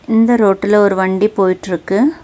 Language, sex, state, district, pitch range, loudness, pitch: Tamil, female, Tamil Nadu, Nilgiris, 190-225 Hz, -13 LUFS, 200 Hz